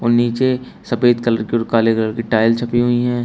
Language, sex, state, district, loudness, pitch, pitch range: Hindi, male, Uttar Pradesh, Shamli, -17 LUFS, 120 Hz, 115-120 Hz